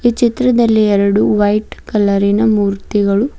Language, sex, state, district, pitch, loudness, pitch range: Kannada, female, Karnataka, Bidar, 210 Hz, -13 LUFS, 200-230 Hz